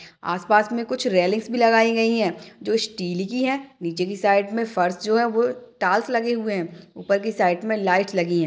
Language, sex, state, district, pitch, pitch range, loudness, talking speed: Hindi, female, Uttar Pradesh, Jalaun, 210 Hz, 180-230 Hz, -22 LUFS, 220 wpm